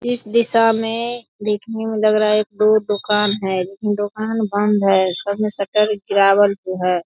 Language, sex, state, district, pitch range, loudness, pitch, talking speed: Hindi, female, Bihar, Darbhanga, 200-220 Hz, -18 LUFS, 210 Hz, 180 wpm